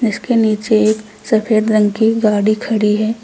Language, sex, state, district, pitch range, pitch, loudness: Hindi, female, Uttar Pradesh, Lucknow, 215-220 Hz, 215 Hz, -15 LUFS